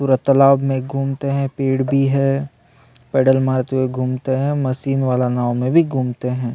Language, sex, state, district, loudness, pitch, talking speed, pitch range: Hindi, male, Chhattisgarh, Sukma, -18 LUFS, 135 Hz, 185 wpm, 130-135 Hz